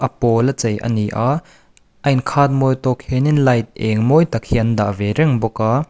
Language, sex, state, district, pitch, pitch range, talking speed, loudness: Mizo, male, Mizoram, Aizawl, 125 Hz, 115-140 Hz, 225 wpm, -17 LUFS